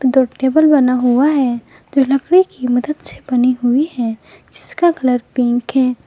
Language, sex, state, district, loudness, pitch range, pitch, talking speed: Hindi, female, Jharkhand, Garhwa, -15 LUFS, 245-280 Hz, 260 Hz, 170 wpm